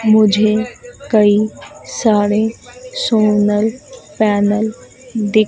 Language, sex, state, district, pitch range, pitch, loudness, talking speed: Hindi, female, Madhya Pradesh, Dhar, 210-225 Hz, 215 Hz, -15 LUFS, 65 wpm